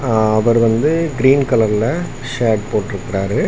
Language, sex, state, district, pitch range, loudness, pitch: Tamil, male, Tamil Nadu, Kanyakumari, 105-130 Hz, -16 LUFS, 115 Hz